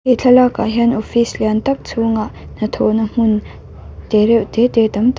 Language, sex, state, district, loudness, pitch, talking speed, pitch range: Mizo, female, Mizoram, Aizawl, -15 LUFS, 230 Hz, 195 wpm, 220-245 Hz